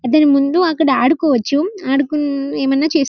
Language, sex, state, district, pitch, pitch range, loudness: Telugu, female, Telangana, Karimnagar, 285 Hz, 275-310 Hz, -15 LUFS